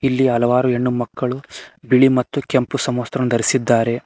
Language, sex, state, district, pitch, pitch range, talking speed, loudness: Kannada, male, Karnataka, Koppal, 125 Hz, 120-130 Hz, 120 wpm, -18 LUFS